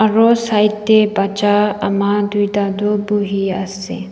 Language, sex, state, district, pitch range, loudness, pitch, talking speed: Nagamese, female, Nagaland, Dimapur, 200-210 Hz, -16 LUFS, 205 Hz, 130 wpm